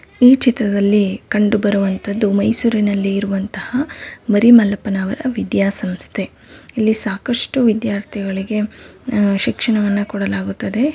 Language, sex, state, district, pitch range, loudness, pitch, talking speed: Kannada, female, Karnataka, Mysore, 200-230 Hz, -17 LUFS, 210 Hz, 75 wpm